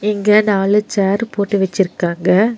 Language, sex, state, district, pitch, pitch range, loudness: Tamil, female, Tamil Nadu, Nilgiris, 200 Hz, 195-210 Hz, -15 LUFS